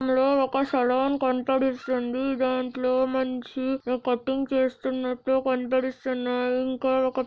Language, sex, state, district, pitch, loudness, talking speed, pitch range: Telugu, female, Andhra Pradesh, Anantapur, 260 Hz, -26 LUFS, 80 wpm, 255-265 Hz